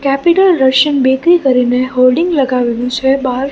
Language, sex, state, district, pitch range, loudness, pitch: Gujarati, female, Gujarat, Gandhinagar, 255-290 Hz, -11 LUFS, 265 Hz